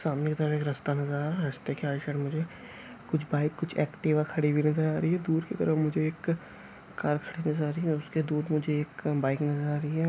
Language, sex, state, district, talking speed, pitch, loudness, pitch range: Hindi, male, Chhattisgarh, Jashpur, 270 wpm, 150 Hz, -30 LUFS, 150-160 Hz